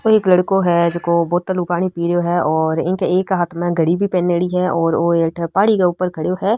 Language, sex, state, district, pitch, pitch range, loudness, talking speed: Rajasthani, female, Rajasthan, Nagaur, 175 Hz, 170-185 Hz, -17 LUFS, 245 wpm